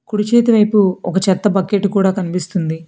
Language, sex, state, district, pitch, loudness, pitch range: Telugu, female, Telangana, Hyderabad, 195 Hz, -15 LUFS, 185-210 Hz